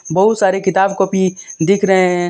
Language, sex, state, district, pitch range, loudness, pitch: Hindi, male, Jharkhand, Deoghar, 185-195 Hz, -14 LUFS, 190 Hz